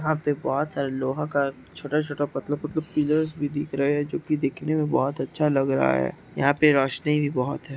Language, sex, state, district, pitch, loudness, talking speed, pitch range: Hindi, male, Chhattisgarh, Raigarh, 145 Hz, -25 LUFS, 230 wpm, 135-150 Hz